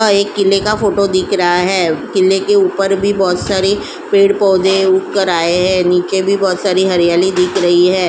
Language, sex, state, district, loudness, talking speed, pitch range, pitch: Hindi, female, Uttar Pradesh, Jyotiba Phule Nagar, -13 LUFS, 200 wpm, 180-200 Hz, 190 Hz